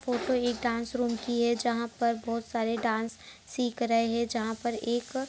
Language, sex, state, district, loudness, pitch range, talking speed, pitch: Hindi, female, West Bengal, Kolkata, -30 LUFS, 230-240 Hz, 195 wpm, 235 Hz